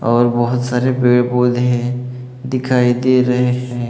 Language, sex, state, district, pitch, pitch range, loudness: Hindi, male, Maharashtra, Gondia, 125 Hz, 120-125 Hz, -15 LUFS